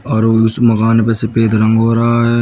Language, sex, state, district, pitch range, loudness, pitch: Hindi, male, Uttar Pradesh, Shamli, 110-115 Hz, -12 LUFS, 115 Hz